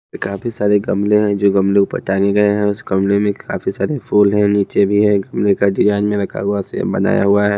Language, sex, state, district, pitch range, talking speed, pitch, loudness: Hindi, male, Himachal Pradesh, Shimla, 100-105 Hz, 235 wpm, 100 Hz, -16 LUFS